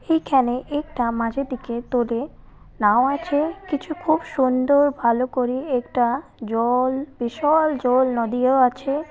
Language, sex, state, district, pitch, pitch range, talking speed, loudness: Bengali, female, West Bengal, Purulia, 260 Hz, 245-290 Hz, 110 wpm, -21 LUFS